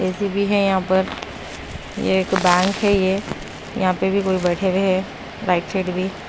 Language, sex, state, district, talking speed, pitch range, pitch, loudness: Hindi, female, Punjab, Kapurthala, 180 wpm, 185-195 Hz, 190 Hz, -20 LUFS